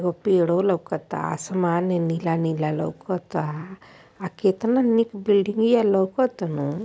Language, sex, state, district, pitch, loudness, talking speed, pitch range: Bhojpuri, female, Uttar Pradesh, Ghazipur, 185 Hz, -23 LUFS, 95 wpm, 170-205 Hz